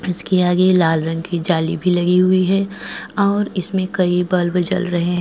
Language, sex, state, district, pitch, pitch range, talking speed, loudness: Hindi, female, Goa, North and South Goa, 180 Hz, 175-185 Hz, 195 wpm, -17 LUFS